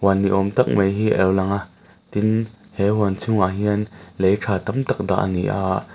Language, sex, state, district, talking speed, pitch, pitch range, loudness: Mizo, male, Mizoram, Aizawl, 220 wpm, 100 Hz, 95-105 Hz, -20 LUFS